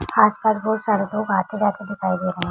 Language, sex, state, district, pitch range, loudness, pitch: Hindi, female, Uttar Pradesh, Jalaun, 190-215 Hz, -21 LUFS, 205 Hz